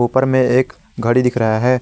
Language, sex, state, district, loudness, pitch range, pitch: Hindi, male, Jharkhand, Garhwa, -16 LUFS, 120-130 Hz, 125 Hz